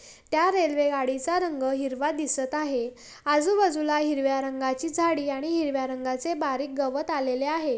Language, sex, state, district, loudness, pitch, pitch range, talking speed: Marathi, female, Maharashtra, Pune, -26 LUFS, 290 Hz, 270-320 Hz, 140 wpm